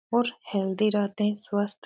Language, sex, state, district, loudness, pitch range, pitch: Hindi, female, Bihar, Supaul, -27 LUFS, 205-215 Hz, 210 Hz